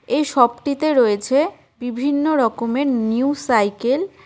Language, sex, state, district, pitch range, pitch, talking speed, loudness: Bengali, female, West Bengal, Cooch Behar, 235-285 Hz, 265 Hz, 115 wpm, -19 LUFS